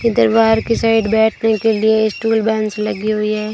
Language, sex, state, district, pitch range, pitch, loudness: Hindi, female, Rajasthan, Bikaner, 215-225 Hz, 220 Hz, -15 LUFS